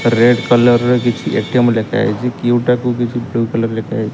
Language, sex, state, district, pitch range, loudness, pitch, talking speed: Odia, male, Odisha, Khordha, 115-120 Hz, -15 LUFS, 120 Hz, 190 wpm